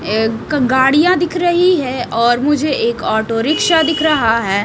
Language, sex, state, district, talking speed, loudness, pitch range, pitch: Hindi, female, Odisha, Malkangiri, 170 wpm, -14 LUFS, 230-320 Hz, 270 Hz